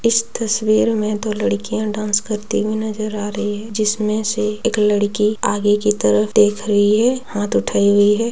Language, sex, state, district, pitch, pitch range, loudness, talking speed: Hindi, female, Bihar, Begusarai, 210 Hz, 205-220 Hz, -18 LUFS, 190 wpm